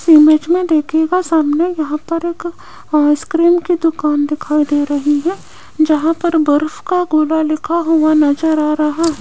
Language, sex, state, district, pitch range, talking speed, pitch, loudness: Hindi, female, Rajasthan, Jaipur, 300-335 Hz, 170 wpm, 315 Hz, -14 LUFS